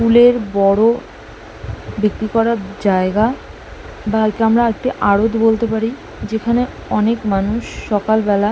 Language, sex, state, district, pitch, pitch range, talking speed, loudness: Bengali, female, West Bengal, Malda, 220 Hz, 205-230 Hz, 115 wpm, -16 LUFS